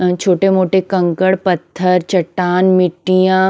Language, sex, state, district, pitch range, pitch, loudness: Hindi, female, Himachal Pradesh, Shimla, 180-190 Hz, 185 Hz, -14 LUFS